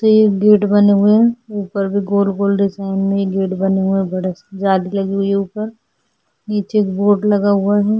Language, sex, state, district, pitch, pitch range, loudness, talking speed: Hindi, female, Goa, North and South Goa, 200 Hz, 195-205 Hz, -16 LUFS, 180 wpm